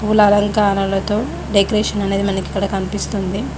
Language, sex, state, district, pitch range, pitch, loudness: Telugu, female, Telangana, Mahabubabad, 195-210 Hz, 200 Hz, -17 LUFS